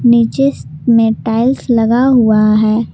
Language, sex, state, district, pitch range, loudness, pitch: Hindi, female, Jharkhand, Garhwa, 215-235 Hz, -12 LUFS, 225 Hz